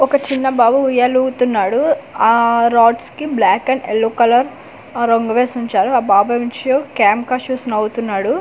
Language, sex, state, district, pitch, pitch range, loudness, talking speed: Telugu, female, Andhra Pradesh, Manyam, 240 Hz, 230-260 Hz, -15 LUFS, 150 wpm